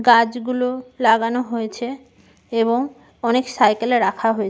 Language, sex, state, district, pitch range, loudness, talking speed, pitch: Bengali, female, West Bengal, Malda, 230-250 Hz, -20 LUFS, 145 wpm, 240 Hz